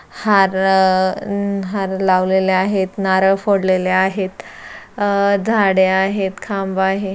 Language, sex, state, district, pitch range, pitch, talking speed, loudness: Marathi, female, Maharashtra, Solapur, 190-200 Hz, 190 Hz, 90 wpm, -16 LUFS